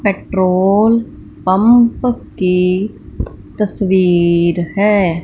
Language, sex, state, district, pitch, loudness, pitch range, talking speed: Hindi, female, Punjab, Fazilka, 190 Hz, -14 LUFS, 180-210 Hz, 55 wpm